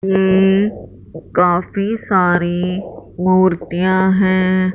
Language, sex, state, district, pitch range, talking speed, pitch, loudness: Hindi, female, Punjab, Fazilka, 180-190 Hz, 50 wpm, 185 Hz, -15 LUFS